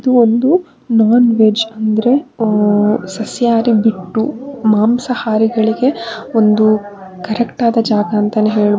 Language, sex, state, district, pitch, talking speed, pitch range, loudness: Kannada, female, Karnataka, Bangalore, 225 Hz, 90 wpm, 215-235 Hz, -14 LUFS